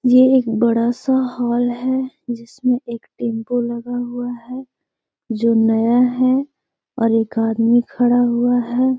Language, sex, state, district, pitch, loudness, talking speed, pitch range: Hindi, female, Bihar, Gaya, 245 Hz, -18 LUFS, 140 wpm, 235-255 Hz